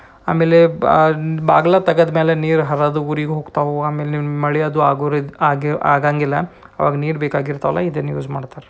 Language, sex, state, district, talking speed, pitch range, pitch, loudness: Kannada, male, Karnataka, Belgaum, 130 wpm, 145-160 Hz, 150 Hz, -17 LUFS